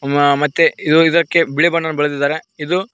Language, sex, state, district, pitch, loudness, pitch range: Kannada, male, Karnataka, Koppal, 160 Hz, -15 LUFS, 145-170 Hz